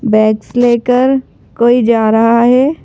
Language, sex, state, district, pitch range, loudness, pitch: Hindi, female, Madhya Pradesh, Bhopal, 225-250 Hz, -11 LUFS, 240 Hz